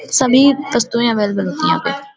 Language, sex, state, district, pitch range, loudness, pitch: Hindi, female, Uttar Pradesh, Hamirpur, 235-280 Hz, -15 LUFS, 260 Hz